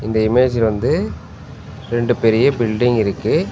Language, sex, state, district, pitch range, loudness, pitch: Tamil, male, Tamil Nadu, Nilgiris, 110-120 Hz, -17 LUFS, 115 Hz